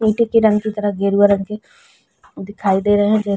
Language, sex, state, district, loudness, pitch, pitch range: Hindi, female, Uttar Pradesh, Varanasi, -16 LUFS, 205 Hz, 200-215 Hz